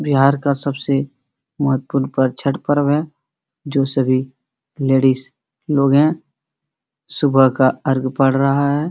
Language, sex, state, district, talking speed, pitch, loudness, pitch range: Hindi, male, Bihar, Supaul, 130 wpm, 135 Hz, -17 LUFS, 135-145 Hz